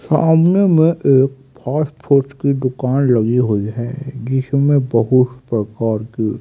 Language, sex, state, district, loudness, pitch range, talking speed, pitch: Hindi, male, Haryana, Rohtak, -16 LUFS, 120-140 Hz, 130 wpm, 130 Hz